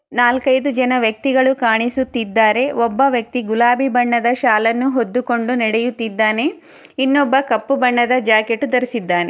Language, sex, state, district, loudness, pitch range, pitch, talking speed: Kannada, female, Karnataka, Chamarajanagar, -16 LUFS, 230-260 Hz, 245 Hz, 105 wpm